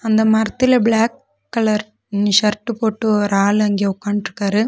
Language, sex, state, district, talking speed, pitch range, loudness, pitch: Tamil, female, Tamil Nadu, Nilgiris, 140 wpm, 205-220 Hz, -17 LUFS, 215 Hz